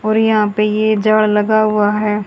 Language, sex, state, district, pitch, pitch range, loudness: Hindi, female, Haryana, Jhajjar, 215 Hz, 210-215 Hz, -14 LUFS